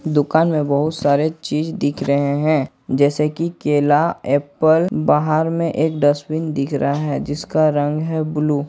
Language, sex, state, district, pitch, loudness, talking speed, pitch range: Hindi, male, Jharkhand, Ranchi, 150 Hz, -18 LUFS, 165 wpm, 145-160 Hz